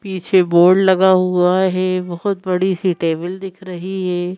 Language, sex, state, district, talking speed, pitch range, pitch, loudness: Hindi, female, Madhya Pradesh, Bhopal, 165 wpm, 180-190 Hz, 185 Hz, -16 LUFS